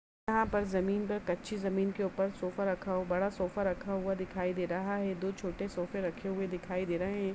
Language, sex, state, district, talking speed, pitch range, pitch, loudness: Hindi, female, Chhattisgarh, Kabirdham, 230 wpm, 185-200 Hz, 190 Hz, -34 LUFS